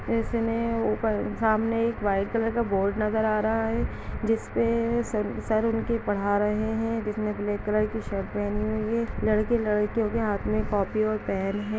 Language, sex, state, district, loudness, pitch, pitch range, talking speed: Hindi, female, Chhattisgarh, Balrampur, -26 LUFS, 215 Hz, 210-230 Hz, 180 wpm